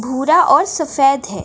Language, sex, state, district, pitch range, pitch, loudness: Hindi, female, Maharashtra, Chandrapur, 265-335 Hz, 280 Hz, -14 LUFS